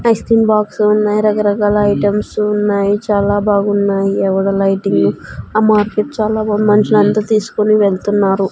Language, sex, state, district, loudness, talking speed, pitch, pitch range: Telugu, female, Andhra Pradesh, Sri Satya Sai, -13 LUFS, 120 wpm, 210 Hz, 200-215 Hz